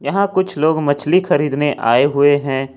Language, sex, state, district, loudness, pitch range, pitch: Hindi, male, Jharkhand, Ranchi, -15 LUFS, 140-170 Hz, 145 Hz